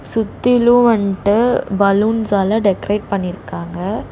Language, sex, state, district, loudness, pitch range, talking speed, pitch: Tamil, female, Tamil Nadu, Chennai, -16 LUFS, 195-225 Hz, 85 wpm, 205 Hz